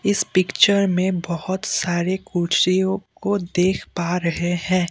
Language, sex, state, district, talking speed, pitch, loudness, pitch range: Hindi, male, Assam, Kamrup Metropolitan, 135 wpm, 185 Hz, -20 LUFS, 175-190 Hz